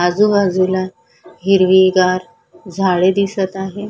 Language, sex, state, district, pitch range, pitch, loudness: Marathi, female, Maharashtra, Solapur, 185-195 Hz, 185 Hz, -15 LUFS